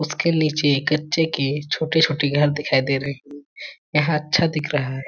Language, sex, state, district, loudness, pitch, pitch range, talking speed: Hindi, male, Chhattisgarh, Balrampur, -20 LUFS, 150 Hz, 140-155 Hz, 200 wpm